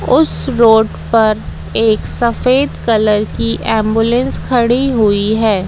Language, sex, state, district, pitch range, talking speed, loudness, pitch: Hindi, female, Madhya Pradesh, Katni, 215-240 Hz, 115 wpm, -13 LUFS, 225 Hz